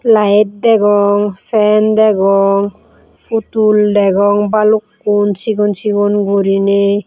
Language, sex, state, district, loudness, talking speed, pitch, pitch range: Chakma, female, Tripura, West Tripura, -12 LUFS, 85 wpm, 205 Hz, 200-215 Hz